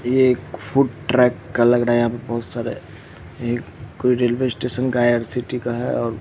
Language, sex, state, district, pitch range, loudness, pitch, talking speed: Hindi, female, Bihar, Jamui, 120-125 Hz, -20 LUFS, 120 Hz, 215 wpm